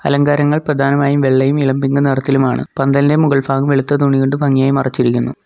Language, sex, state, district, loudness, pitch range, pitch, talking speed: Malayalam, male, Kerala, Kollam, -14 LUFS, 135-145 Hz, 140 Hz, 130 wpm